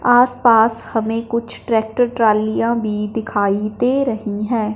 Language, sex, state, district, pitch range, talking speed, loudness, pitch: Hindi, male, Punjab, Fazilka, 215-235 Hz, 140 wpm, -17 LUFS, 225 Hz